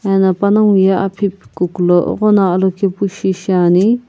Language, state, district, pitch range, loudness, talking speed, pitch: Sumi, Nagaland, Kohima, 180-200 Hz, -14 LUFS, 115 wpm, 190 Hz